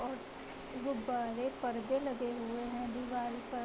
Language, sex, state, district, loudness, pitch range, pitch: Hindi, female, Uttar Pradesh, Budaun, -38 LUFS, 240-255 Hz, 245 Hz